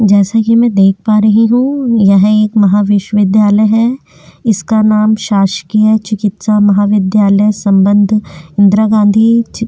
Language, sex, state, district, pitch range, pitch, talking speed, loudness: Hindi, female, Chhattisgarh, Korba, 200-220 Hz, 210 Hz, 125 wpm, -10 LUFS